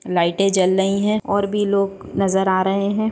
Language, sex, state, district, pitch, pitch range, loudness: Hindi, female, Goa, North and South Goa, 195 Hz, 190-200 Hz, -19 LUFS